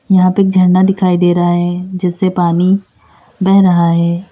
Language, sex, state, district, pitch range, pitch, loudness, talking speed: Hindi, female, Uttar Pradesh, Lalitpur, 175-190 Hz, 185 Hz, -12 LUFS, 180 wpm